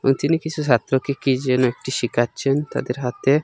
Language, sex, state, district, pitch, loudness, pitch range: Bengali, male, Assam, Hailakandi, 130 Hz, -21 LUFS, 125-140 Hz